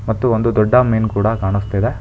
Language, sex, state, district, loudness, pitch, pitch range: Kannada, male, Karnataka, Bangalore, -16 LUFS, 110 Hz, 100-115 Hz